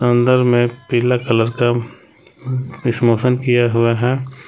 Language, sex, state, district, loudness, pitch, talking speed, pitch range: Hindi, male, Jharkhand, Palamu, -16 LUFS, 125 Hz, 120 wpm, 120-130 Hz